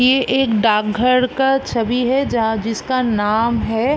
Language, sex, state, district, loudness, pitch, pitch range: Hindi, female, Bihar, East Champaran, -17 LUFS, 245 Hz, 225-260 Hz